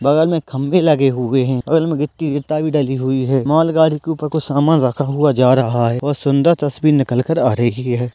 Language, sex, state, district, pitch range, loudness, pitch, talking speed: Hindi, male, Bihar, Purnia, 130-155 Hz, -16 LUFS, 145 Hz, 245 wpm